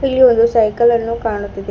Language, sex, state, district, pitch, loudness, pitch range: Kannada, female, Karnataka, Bidar, 230 Hz, -14 LUFS, 215-235 Hz